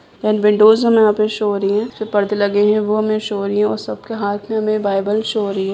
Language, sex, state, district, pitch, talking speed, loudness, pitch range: Hindi, female, Jharkhand, Sahebganj, 210 Hz, 290 wpm, -16 LUFS, 205-215 Hz